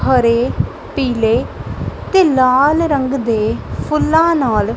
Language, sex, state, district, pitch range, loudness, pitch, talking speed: Punjabi, female, Punjab, Kapurthala, 230-295 Hz, -15 LUFS, 260 Hz, 115 wpm